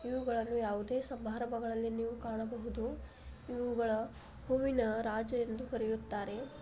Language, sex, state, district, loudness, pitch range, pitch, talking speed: Kannada, female, Karnataka, Belgaum, -37 LUFS, 225-245 Hz, 235 Hz, 75 wpm